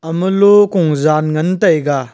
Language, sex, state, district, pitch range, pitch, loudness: Wancho, male, Arunachal Pradesh, Longding, 155-190 Hz, 160 Hz, -12 LUFS